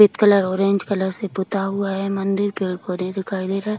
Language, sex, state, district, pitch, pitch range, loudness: Hindi, female, Bihar, Kishanganj, 195 Hz, 190-200 Hz, -21 LUFS